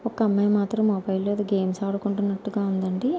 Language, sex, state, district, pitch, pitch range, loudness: Telugu, female, Andhra Pradesh, Anantapur, 205 Hz, 195-210 Hz, -24 LUFS